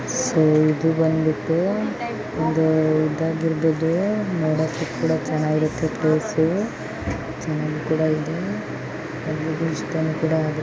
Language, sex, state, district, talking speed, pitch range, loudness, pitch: Kannada, female, Karnataka, Belgaum, 90 wpm, 155-160 Hz, -22 LUFS, 160 Hz